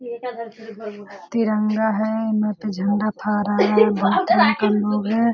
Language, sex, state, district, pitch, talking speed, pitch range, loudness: Hindi, female, Bihar, Sitamarhi, 215 Hz, 110 wpm, 210-225 Hz, -20 LUFS